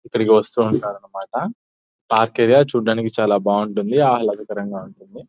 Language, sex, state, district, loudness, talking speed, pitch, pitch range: Telugu, male, Telangana, Nalgonda, -18 LUFS, 125 wpm, 110 Hz, 100-115 Hz